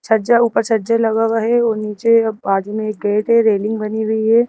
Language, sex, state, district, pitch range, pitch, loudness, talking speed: Hindi, female, Madhya Pradesh, Bhopal, 215-230 Hz, 220 Hz, -16 LUFS, 225 wpm